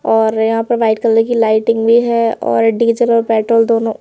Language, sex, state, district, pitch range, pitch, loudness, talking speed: Hindi, male, Madhya Pradesh, Bhopal, 225-230 Hz, 225 Hz, -13 LUFS, 210 wpm